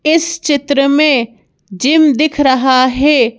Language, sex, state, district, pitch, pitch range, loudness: Hindi, female, Madhya Pradesh, Bhopal, 280 Hz, 255-300 Hz, -11 LUFS